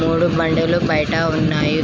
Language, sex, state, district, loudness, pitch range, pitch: Telugu, female, Andhra Pradesh, Krishna, -17 LUFS, 155-165 Hz, 165 Hz